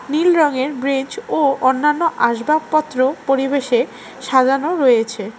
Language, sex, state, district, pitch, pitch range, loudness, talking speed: Bengali, female, West Bengal, Alipurduar, 270 Hz, 255-300 Hz, -17 LUFS, 100 wpm